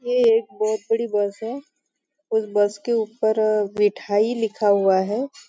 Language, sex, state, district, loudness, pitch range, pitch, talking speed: Hindi, female, Maharashtra, Nagpur, -21 LUFS, 210-280 Hz, 220 Hz, 155 wpm